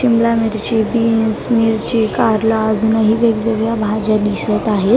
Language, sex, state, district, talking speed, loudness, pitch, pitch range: Marathi, female, Maharashtra, Mumbai Suburban, 120 wpm, -15 LUFS, 220 Hz, 215-230 Hz